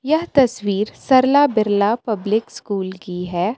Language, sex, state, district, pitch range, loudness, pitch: Hindi, female, Jharkhand, Palamu, 195-260 Hz, -18 LUFS, 215 Hz